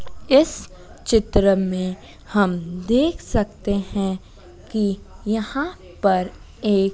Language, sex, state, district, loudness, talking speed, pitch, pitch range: Hindi, female, Madhya Pradesh, Dhar, -21 LUFS, 95 wpm, 200 Hz, 185-225 Hz